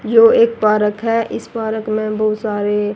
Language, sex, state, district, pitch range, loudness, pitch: Hindi, female, Haryana, Rohtak, 210-230 Hz, -16 LUFS, 215 Hz